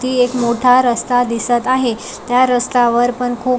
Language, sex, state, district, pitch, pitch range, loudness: Marathi, female, Maharashtra, Dhule, 245 Hz, 240-250 Hz, -15 LUFS